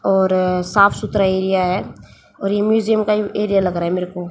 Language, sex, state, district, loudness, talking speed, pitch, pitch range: Hindi, female, Haryana, Jhajjar, -17 LUFS, 210 wpm, 195 Hz, 180-210 Hz